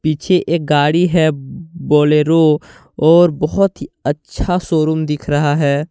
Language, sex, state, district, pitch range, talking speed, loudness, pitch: Hindi, male, Jharkhand, Deoghar, 150-170 Hz, 130 wpm, -15 LUFS, 155 Hz